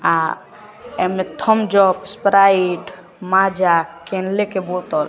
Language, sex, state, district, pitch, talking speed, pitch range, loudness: Hindi, male, Bihar, West Champaran, 190 Hz, 80 wpm, 185-200 Hz, -17 LUFS